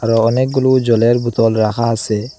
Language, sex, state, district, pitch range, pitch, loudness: Bengali, male, Assam, Hailakandi, 115-120 Hz, 115 Hz, -14 LUFS